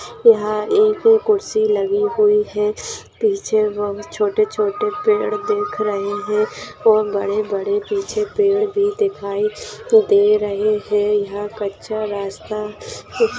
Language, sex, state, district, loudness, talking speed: Hindi, female, Maharashtra, Dhule, -18 LUFS, 120 wpm